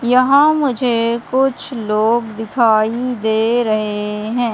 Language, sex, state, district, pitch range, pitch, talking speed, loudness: Hindi, male, Madhya Pradesh, Katni, 220-250 Hz, 235 Hz, 105 wpm, -16 LUFS